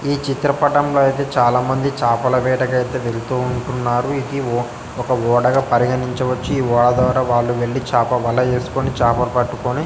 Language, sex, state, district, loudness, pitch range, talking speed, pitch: Telugu, male, Telangana, Nalgonda, -18 LUFS, 120-135 Hz, 120 wpm, 125 Hz